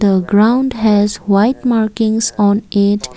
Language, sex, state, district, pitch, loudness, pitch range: English, female, Assam, Kamrup Metropolitan, 210 Hz, -13 LUFS, 205-225 Hz